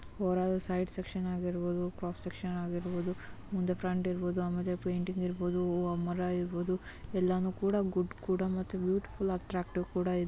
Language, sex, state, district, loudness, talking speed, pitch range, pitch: Kannada, female, Karnataka, Mysore, -34 LUFS, 140 wpm, 180-185 Hz, 180 Hz